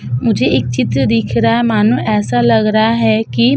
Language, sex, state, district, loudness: Hindi, female, Uttar Pradesh, Budaun, -13 LUFS